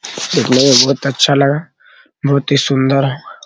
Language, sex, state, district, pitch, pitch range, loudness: Hindi, male, Bihar, Araria, 140 Hz, 135-140 Hz, -13 LUFS